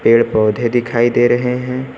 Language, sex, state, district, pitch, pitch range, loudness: Hindi, male, Uttar Pradesh, Lucknow, 120 Hz, 115-125 Hz, -15 LUFS